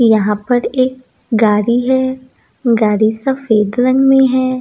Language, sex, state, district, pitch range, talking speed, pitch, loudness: Hindi, female, Bihar, East Champaran, 220-260 Hz, 130 wpm, 245 Hz, -14 LUFS